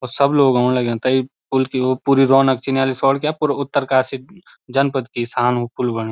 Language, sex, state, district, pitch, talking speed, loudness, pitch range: Garhwali, male, Uttarakhand, Uttarkashi, 130 Hz, 195 wpm, -18 LUFS, 125-135 Hz